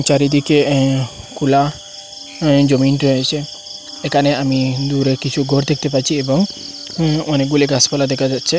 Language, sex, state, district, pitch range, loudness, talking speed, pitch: Bengali, male, Assam, Hailakandi, 135-150 Hz, -16 LUFS, 135 wpm, 140 Hz